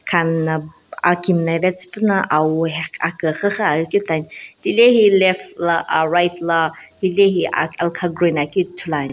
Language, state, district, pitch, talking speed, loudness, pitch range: Sumi, Nagaland, Dimapur, 170 Hz, 145 wpm, -17 LUFS, 160-185 Hz